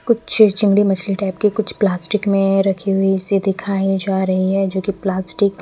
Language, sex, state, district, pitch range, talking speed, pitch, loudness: Hindi, female, Chandigarh, Chandigarh, 195-200 Hz, 190 wpm, 195 Hz, -17 LUFS